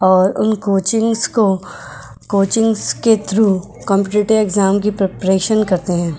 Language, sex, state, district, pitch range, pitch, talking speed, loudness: Hindi, female, Uttar Pradesh, Jyotiba Phule Nagar, 190-220 Hz, 200 Hz, 125 wpm, -15 LUFS